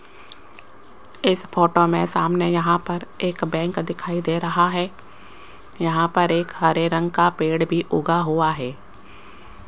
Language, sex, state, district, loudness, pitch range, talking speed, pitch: Hindi, female, Rajasthan, Jaipur, -21 LUFS, 160-175 Hz, 140 wpm, 170 Hz